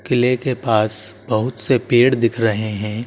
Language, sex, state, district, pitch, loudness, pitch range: Hindi, male, Madhya Pradesh, Dhar, 115 Hz, -18 LUFS, 110-125 Hz